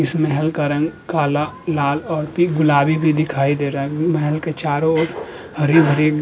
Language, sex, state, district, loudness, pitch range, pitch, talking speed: Hindi, male, Uttar Pradesh, Budaun, -18 LUFS, 145-160 Hz, 155 Hz, 185 wpm